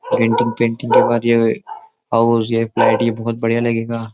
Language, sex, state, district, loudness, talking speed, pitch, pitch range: Hindi, male, Uttar Pradesh, Jyotiba Phule Nagar, -16 LUFS, 175 wpm, 115 Hz, 115-120 Hz